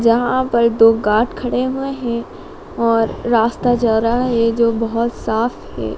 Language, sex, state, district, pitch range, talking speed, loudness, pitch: Hindi, female, Madhya Pradesh, Dhar, 225-245 Hz, 160 wpm, -17 LUFS, 235 Hz